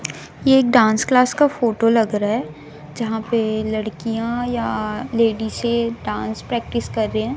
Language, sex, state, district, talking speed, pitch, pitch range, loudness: Hindi, female, Chhattisgarh, Raipur, 155 wpm, 225 Hz, 215-240 Hz, -19 LUFS